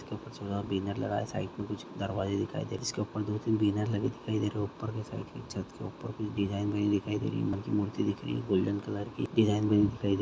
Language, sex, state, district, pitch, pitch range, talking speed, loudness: Hindi, female, Andhra Pradesh, Anantapur, 105 Hz, 100-110 Hz, 165 wpm, -32 LUFS